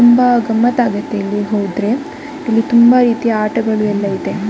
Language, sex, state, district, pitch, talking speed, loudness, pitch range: Kannada, female, Karnataka, Dakshina Kannada, 225 Hz, 160 wpm, -14 LUFS, 210-240 Hz